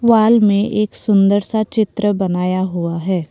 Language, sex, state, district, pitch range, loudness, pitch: Hindi, female, Assam, Kamrup Metropolitan, 185-215 Hz, -16 LUFS, 205 Hz